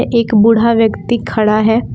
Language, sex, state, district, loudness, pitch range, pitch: Hindi, female, Jharkhand, Palamu, -12 LUFS, 220-235 Hz, 225 Hz